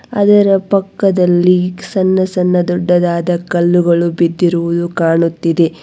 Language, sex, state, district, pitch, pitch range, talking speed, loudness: Kannada, female, Karnataka, Bangalore, 175 Hz, 170-185 Hz, 80 wpm, -13 LUFS